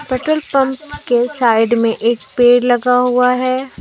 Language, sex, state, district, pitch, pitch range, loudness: Hindi, female, Jharkhand, Deoghar, 250 Hz, 240-265 Hz, -14 LUFS